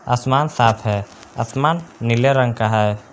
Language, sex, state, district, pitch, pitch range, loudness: Hindi, male, Jharkhand, Palamu, 120 Hz, 110-135 Hz, -18 LUFS